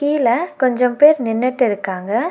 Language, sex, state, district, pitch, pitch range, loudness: Tamil, female, Tamil Nadu, Nilgiris, 250 Hz, 225-290 Hz, -16 LUFS